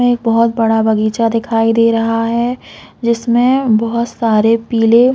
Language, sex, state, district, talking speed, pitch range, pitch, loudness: Hindi, female, Chhattisgarh, Bilaspur, 150 wpm, 225-235 Hz, 230 Hz, -13 LUFS